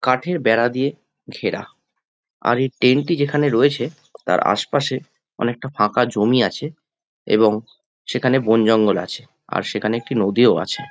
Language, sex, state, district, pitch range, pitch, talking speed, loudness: Bengali, male, West Bengal, Jhargram, 115-140 Hz, 125 Hz, 155 wpm, -19 LUFS